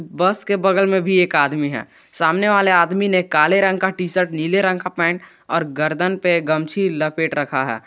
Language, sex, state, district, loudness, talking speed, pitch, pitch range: Hindi, male, Jharkhand, Garhwa, -18 LUFS, 215 wpm, 180 Hz, 155-190 Hz